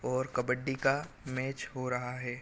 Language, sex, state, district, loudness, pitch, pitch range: Hindi, male, Chhattisgarh, Raigarh, -34 LUFS, 130 Hz, 125-135 Hz